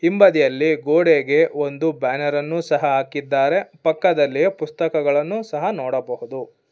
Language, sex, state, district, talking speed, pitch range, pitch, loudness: Kannada, female, Karnataka, Bangalore, 100 wpm, 145-205 Hz, 155 Hz, -19 LUFS